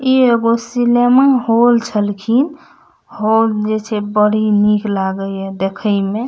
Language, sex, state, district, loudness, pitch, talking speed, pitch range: Maithili, female, Bihar, Madhepura, -15 LUFS, 220 Hz, 115 wpm, 205-240 Hz